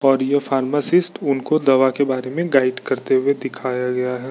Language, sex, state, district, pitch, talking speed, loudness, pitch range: Hindi, male, Bihar, Bhagalpur, 135 Hz, 195 wpm, -19 LUFS, 130-140 Hz